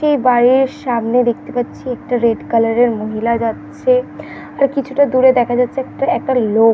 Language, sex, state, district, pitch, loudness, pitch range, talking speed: Bengali, female, West Bengal, North 24 Parganas, 245 Hz, -15 LUFS, 235-265 Hz, 170 wpm